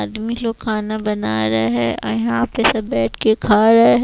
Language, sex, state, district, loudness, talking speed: Hindi, female, Chhattisgarh, Raipur, -17 LUFS, 195 wpm